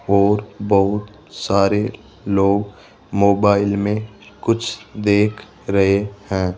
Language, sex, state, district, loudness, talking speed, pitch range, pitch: Hindi, male, Rajasthan, Jaipur, -18 LUFS, 90 wpm, 100-105 Hz, 100 Hz